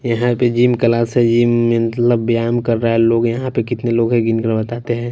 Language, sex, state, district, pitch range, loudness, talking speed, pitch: Hindi, male, Punjab, Kapurthala, 115-120 Hz, -16 LUFS, 255 wpm, 115 Hz